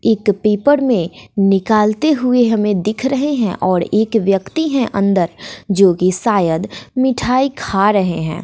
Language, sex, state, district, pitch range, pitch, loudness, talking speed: Hindi, female, Bihar, West Champaran, 195-250 Hz, 210 Hz, -15 LUFS, 140 wpm